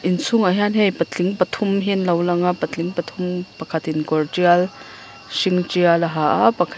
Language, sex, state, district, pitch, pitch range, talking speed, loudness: Mizo, female, Mizoram, Aizawl, 180 Hz, 170-190 Hz, 175 wpm, -19 LUFS